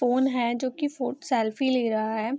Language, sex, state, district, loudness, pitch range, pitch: Hindi, female, Bihar, Gopalganj, -26 LUFS, 235-265 Hz, 250 Hz